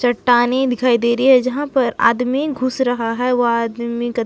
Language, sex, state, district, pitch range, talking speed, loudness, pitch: Hindi, female, Chhattisgarh, Sukma, 235-255 Hz, 195 wpm, -17 LUFS, 245 Hz